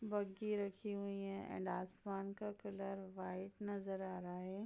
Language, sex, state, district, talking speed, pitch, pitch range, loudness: Hindi, female, Bihar, East Champaran, 165 wpm, 195 Hz, 190-205 Hz, -45 LUFS